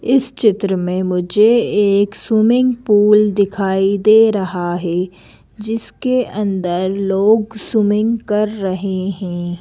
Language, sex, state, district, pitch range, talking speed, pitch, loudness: Hindi, female, Madhya Pradesh, Bhopal, 190-220 Hz, 110 wpm, 205 Hz, -16 LUFS